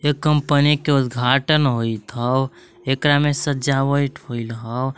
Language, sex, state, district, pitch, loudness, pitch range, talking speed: Magahi, male, Jharkhand, Palamu, 135 Hz, -19 LUFS, 125-145 Hz, 120 wpm